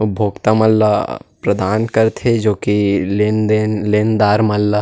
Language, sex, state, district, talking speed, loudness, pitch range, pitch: Chhattisgarhi, male, Chhattisgarh, Rajnandgaon, 125 wpm, -15 LUFS, 105-110 Hz, 105 Hz